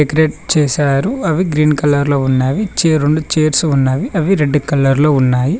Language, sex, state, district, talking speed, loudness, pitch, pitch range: Telugu, male, Telangana, Mahabubabad, 160 wpm, -14 LUFS, 150 Hz, 140-160 Hz